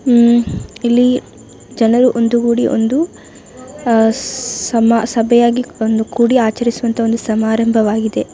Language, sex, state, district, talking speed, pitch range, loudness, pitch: Kannada, female, Karnataka, Dakshina Kannada, 100 wpm, 225-240 Hz, -14 LUFS, 235 Hz